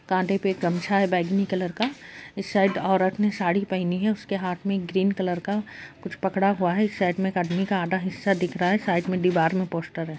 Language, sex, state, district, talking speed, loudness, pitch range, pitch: Hindi, female, Bihar, Jahanabad, 235 wpm, -25 LUFS, 180-195 Hz, 190 Hz